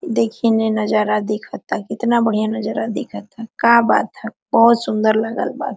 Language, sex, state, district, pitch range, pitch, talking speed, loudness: Hindi, female, Jharkhand, Sahebganj, 215-230 Hz, 220 Hz, 155 wpm, -18 LUFS